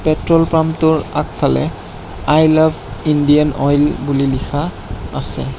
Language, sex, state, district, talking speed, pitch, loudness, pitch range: Assamese, male, Assam, Kamrup Metropolitan, 105 wpm, 150 Hz, -15 LUFS, 135-160 Hz